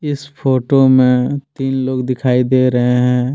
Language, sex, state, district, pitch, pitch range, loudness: Hindi, male, Jharkhand, Deoghar, 130 Hz, 125-135 Hz, -14 LUFS